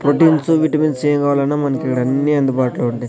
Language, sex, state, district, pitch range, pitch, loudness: Telugu, male, Andhra Pradesh, Sri Satya Sai, 130-155 Hz, 145 Hz, -16 LUFS